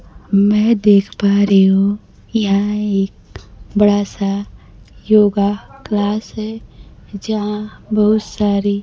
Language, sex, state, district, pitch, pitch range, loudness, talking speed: Hindi, female, Bihar, Kaimur, 205 Hz, 200-210 Hz, -16 LUFS, 100 wpm